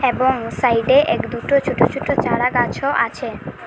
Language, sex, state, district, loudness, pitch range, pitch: Bengali, female, Assam, Hailakandi, -18 LUFS, 245-275 Hz, 260 Hz